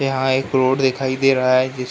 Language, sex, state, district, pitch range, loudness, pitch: Hindi, male, Uttar Pradesh, Ghazipur, 130-135 Hz, -18 LUFS, 130 Hz